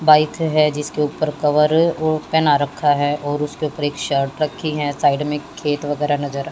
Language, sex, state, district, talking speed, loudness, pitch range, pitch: Hindi, female, Haryana, Jhajjar, 210 wpm, -19 LUFS, 145-155 Hz, 150 Hz